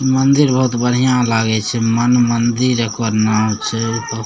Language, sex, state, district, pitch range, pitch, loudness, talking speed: Maithili, male, Bihar, Samastipur, 115-125 Hz, 115 Hz, -15 LUFS, 125 wpm